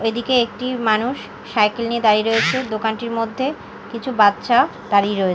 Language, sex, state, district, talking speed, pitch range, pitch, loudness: Bengali, female, Odisha, Malkangiri, 145 wpm, 215-240 Hz, 225 Hz, -19 LUFS